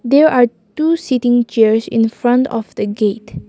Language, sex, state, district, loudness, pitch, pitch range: English, female, Nagaland, Kohima, -15 LUFS, 230 Hz, 220-255 Hz